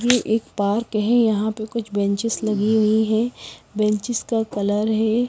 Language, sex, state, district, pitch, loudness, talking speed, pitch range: Hindi, female, Himachal Pradesh, Shimla, 220 Hz, -21 LUFS, 170 wpm, 210-230 Hz